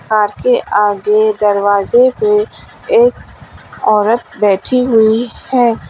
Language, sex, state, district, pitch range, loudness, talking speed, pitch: Hindi, female, Uttar Pradesh, Lalitpur, 210-255 Hz, -12 LUFS, 90 wpm, 225 Hz